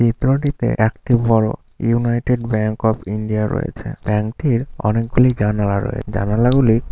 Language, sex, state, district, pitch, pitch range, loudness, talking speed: Bengali, male, West Bengal, Malda, 115 Hz, 110-125 Hz, -18 LUFS, 130 wpm